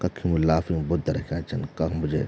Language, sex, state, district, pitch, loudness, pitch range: Garhwali, male, Uttarakhand, Tehri Garhwal, 80 Hz, -26 LUFS, 80-85 Hz